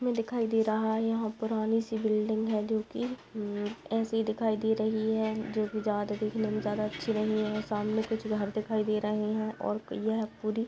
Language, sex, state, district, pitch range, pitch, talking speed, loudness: Hindi, female, Bihar, Purnia, 215-220 Hz, 220 Hz, 210 wpm, -31 LUFS